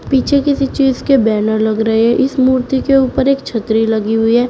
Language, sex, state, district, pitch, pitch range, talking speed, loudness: Hindi, female, Uttar Pradesh, Shamli, 255 Hz, 225-270 Hz, 225 wpm, -13 LUFS